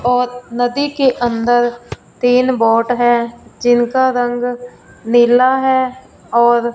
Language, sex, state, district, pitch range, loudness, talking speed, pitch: Hindi, female, Punjab, Fazilka, 240-255 Hz, -14 LUFS, 105 wpm, 245 Hz